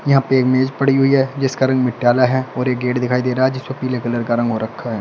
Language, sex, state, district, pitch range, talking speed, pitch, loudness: Hindi, male, Uttar Pradesh, Shamli, 125-130 Hz, 310 wpm, 130 Hz, -17 LUFS